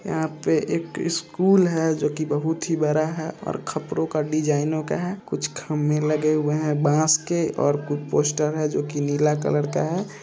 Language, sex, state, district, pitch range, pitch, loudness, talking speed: Hindi, male, Bihar, Purnia, 150-160 Hz, 155 Hz, -23 LUFS, 195 wpm